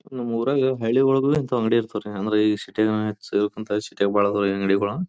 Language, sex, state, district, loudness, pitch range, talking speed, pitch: Kannada, male, Karnataka, Bijapur, -22 LUFS, 105-125 Hz, 120 wpm, 110 Hz